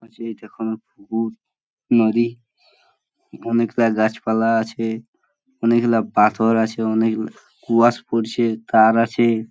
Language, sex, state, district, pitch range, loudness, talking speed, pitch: Bengali, male, West Bengal, Purulia, 110-115 Hz, -19 LUFS, 100 wpm, 115 Hz